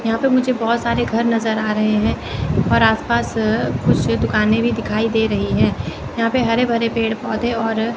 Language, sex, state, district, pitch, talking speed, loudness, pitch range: Hindi, female, Chandigarh, Chandigarh, 230 Hz, 205 wpm, -18 LUFS, 220-235 Hz